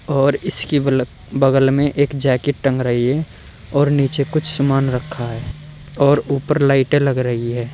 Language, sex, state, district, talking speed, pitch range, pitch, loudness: Hindi, male, Uttar Pradesh, Saharanpur, 170 wpm, 125-145 Hz, 140 Hz, -17 LUFS